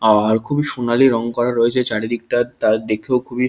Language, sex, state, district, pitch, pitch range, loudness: Bengali, male, West Bengal, Kolkata, 120 Hz, 110-125 Hz, -18 LUFS